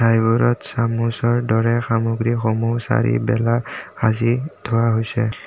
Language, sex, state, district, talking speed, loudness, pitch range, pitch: Assamese, male, Assam, Kamrup Metropolitan, 90 wpm, -19 LUFS, 115-120 Hz, 115 Hz